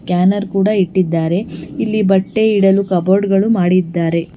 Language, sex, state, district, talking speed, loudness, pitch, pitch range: Kannada, female, Karnataka, Bangalore, 125 wpm, -14 LUFS, 190 Hz, 175-200 Hz